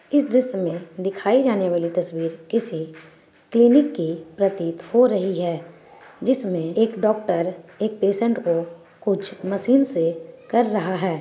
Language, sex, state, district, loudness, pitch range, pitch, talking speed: Magahi, female, Bihar, Gaya, -22 LUFS, 170-225 Hz, 190 Hz, 140 wpm